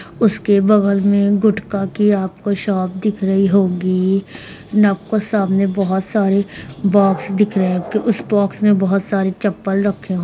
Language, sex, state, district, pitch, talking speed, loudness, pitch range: Hindi, female, Bihar, Sitamarhi, 200 Hz, 170 wpm, -16 LUFS, 190-205 Hz